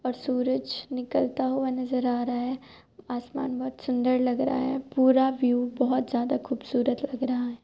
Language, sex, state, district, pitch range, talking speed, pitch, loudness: Hindi, male, Uttar Pradesh, Jyotiba Phule Nagar, 250-265 Hz, 175 wpm, 255 Hz, -27 LUFS